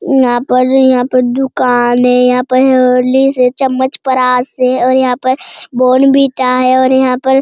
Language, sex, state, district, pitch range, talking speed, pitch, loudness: Hindi, female, Bihar, Jamui, 250-265 Hz, 170 wpm, 255 Hz, -10 LUFS